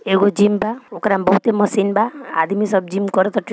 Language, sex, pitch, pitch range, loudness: Bhojpuri, female, 205 Hz, 195-210 Hz, -17 LUFS